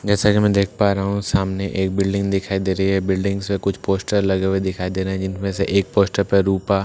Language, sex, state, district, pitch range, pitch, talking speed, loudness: Hindi, male, Bihar, Katihar, 95-100 Hz, 100 Hz, 270 wpm, -20 LUFS